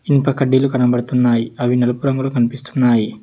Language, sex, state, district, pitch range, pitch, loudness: Telugu, male, Telangana, Hyderabad, 120-135 Hz, 125 Hz, -16 LUFS